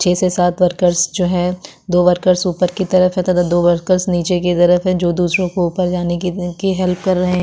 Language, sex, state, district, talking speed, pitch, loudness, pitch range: Hindi, female, Uttarakhand, Tehri Garhwal, 240 wpm, 180 Hz, -15 LUFS, 175-185 Hz